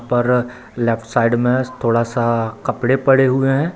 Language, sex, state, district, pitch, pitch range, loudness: Hindi, male, Bihar, Samastipur, 120 Hz, 115-130 Hz, -17 LUFS